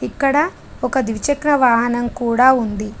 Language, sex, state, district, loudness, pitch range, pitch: Telugu, female, Telangana, Adilabad, -17 LUFS, 230-275 Hz, 245 Hz